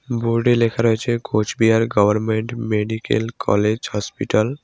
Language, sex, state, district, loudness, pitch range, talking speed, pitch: Bengali, male, West Bengal, Cooch Behar, -19 LUFS, 110-115 Hz, 130 wpm, 115 Hz